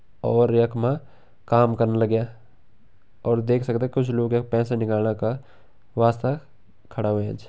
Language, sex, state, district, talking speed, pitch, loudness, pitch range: Garhwali, male, Uttarakhand, Tehri Garhwal, 150 wpm, 115 Hz, -23 LUFS, 110-120 Hz